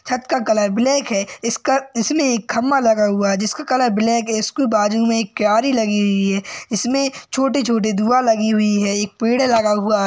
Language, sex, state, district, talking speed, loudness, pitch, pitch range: Hindi, male, Uttar Pradesh, Gorakhpur, 200 wpm, -17 LUFS, 225 Hz, 210-255 Hz